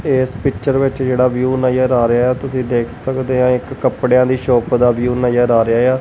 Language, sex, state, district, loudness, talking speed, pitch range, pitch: Punjabi, male, Punjab, Kapurthala, -15 LUFS, 220 wpm, 125-130 Hz, 125 Hz